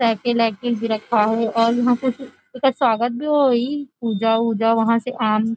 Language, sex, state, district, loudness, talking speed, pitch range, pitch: Chhattisgarhi, female, Chhattisgarh, Rajnandgaon, -19 LUFS, 205 wpm, 225-250 Hz, 230 Hz